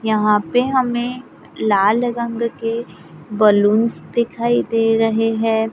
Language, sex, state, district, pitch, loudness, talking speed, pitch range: Hindi, female, Maharashtra, Gondia, 225 Hz, -17 LUFS, 115 wpm, 210-235 Hz